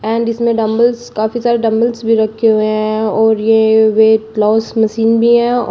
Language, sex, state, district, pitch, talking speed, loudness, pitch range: Hindi, female, Uttar Pradesh, Shamli, 225 Hz, 180 wpm, -13 LUFS, 220-230 Hz